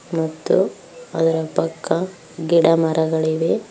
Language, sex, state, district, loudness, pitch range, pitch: Kannada, female, Karnataka, Koppal, -19 LUFS, 160-170 Hz, 165 Hz